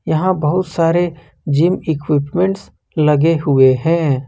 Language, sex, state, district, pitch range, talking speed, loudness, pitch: Hindi, male, Jharkhand, Ranchi, 150-175 Hz, 110 wpm, -15 LUFS, 160 Hz